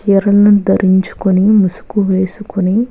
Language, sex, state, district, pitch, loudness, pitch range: Telugu, female, Andhra Pradesh, Krishna, 195 Hz, -12 LUFS, 190-205 Hz